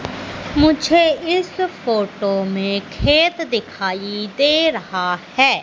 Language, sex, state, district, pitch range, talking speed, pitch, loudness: Hindi, female, Madhya Pradesh, Katni, 200-320 Hz, 95 wpm, 240 Hz, -18 LUFS